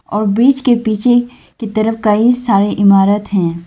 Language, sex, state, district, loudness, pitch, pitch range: Hindi, female, Arunachal Pradesh, Lower Dibang Valley, -13 LUFS, 215 Hz, 205-240 Hz